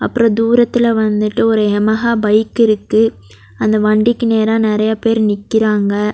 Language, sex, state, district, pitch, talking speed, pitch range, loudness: Tamil, female, Tamil Nadu, Nilgiris, 220 Hz, 125 wpm, 210-225 Hz, -14 LUFS